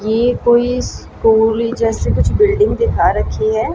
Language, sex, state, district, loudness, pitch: Hindi, female, Haryana, Jhajjar, -15 LUFS, 240 Hz